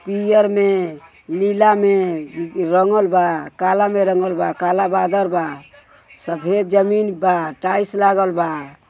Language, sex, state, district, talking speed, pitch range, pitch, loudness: Bhojpuri, male, Uttar Pradesh, Gorakhpur, 130 wpm, 175-200 Hz, 185 Hz, -17 LUFS